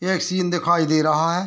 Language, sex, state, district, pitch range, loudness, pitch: Hindi, male, Bihar, Muzaffarpur, 160-185 Hz, -20 LUFS, 175 Hz